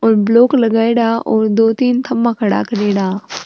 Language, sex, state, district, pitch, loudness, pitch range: Marwari, female, Rajasthan, Nagaur, 225 Hz, -14 LUFS, 215-235 Hz